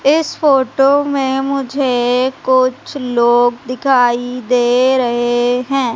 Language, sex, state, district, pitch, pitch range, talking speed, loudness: Hindi, female, Madhya Pradesh, Umaria, 255 Hz, 245-270 Hz, 100 wpm, -14 LUFS